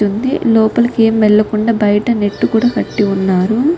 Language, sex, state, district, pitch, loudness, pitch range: Telugu, female, Telangana, Nalgonda, 220 Hz, -13 LUFS, 205-235 Hz